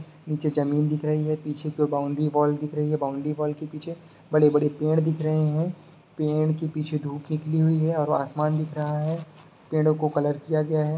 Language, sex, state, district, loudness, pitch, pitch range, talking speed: Hindi, male, Bihar, Sitamarhi, -25 LUFS, 155 Hz, 150-155 Hz, 235 wpm